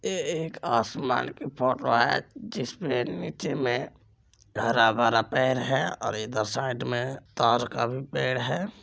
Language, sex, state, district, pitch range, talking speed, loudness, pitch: Maithili, male, Bihar, Supaul, 115-130 Hz, 150 wpm, -27 LUFS, 125 Hz